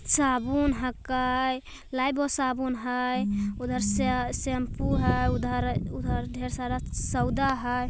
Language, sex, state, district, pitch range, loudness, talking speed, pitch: Magahi, female, Bihar, Jamui, 185-260 Hz, -28 LUFS, 120 wpm, 250 Hz